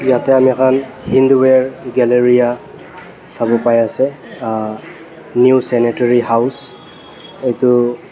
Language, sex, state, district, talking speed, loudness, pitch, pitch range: Nagamese, male, Nagaland, Dimapur, 90 wpm, -14 LUFS, 125 Hz, 120-130 Hz